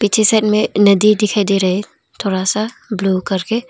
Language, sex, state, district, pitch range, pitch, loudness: Hindi, female, Arunachal Pradesh, Longding, 195-215 Hz, 210 Hz, -15 LUFS